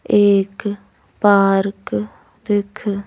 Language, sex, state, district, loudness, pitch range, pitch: Hindi, female, Madhya Pradesh, Bhopal, -17 LUFS, 195-205 Hz, 200 Hz